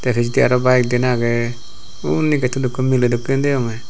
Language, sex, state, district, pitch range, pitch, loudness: Chakma, male, Tripura, Unakoti, 120-130 Hz, 125 Hz, -17 LUFS